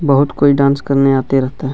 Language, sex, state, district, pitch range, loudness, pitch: Hindi, male, Chhattisgarh, Kabirdham, 135-140 Hz, -13 LUFS, 140 Hz